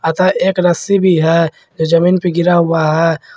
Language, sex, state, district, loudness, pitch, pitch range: Hindi, male, Jharkhand, Garhwa, -13 LUFS, 170 Hz, 165-185 Hz